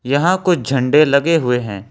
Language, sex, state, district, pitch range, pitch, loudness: Hindi, male, Jharkhand, Ranchi, 125-165 Hz, 140 Hz, -15 LUFS